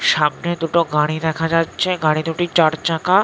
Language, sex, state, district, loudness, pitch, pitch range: Bengali, male, West Bengal, North 24 Parganas, -18 LUFS, 165 Hz, 155-170 Hz